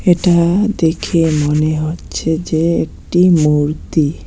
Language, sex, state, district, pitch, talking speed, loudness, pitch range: Bengali, male, West Bengal, Alipurduar, 160 Hz, 100 wpm, -14 LUFS, 155-175 Hz